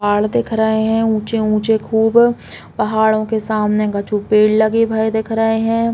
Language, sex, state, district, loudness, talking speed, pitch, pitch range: Bundeli, female, Uttar Pradesh, Hamirpur, -16 LUFS, 160 wpm, 220 Hz, 215-225 Hz